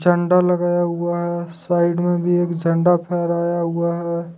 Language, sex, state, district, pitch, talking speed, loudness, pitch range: Hindi, male, Jharkhand, Ranchi, 175 Hz, 165 wpm, -19 LUFS, 170-175 Hz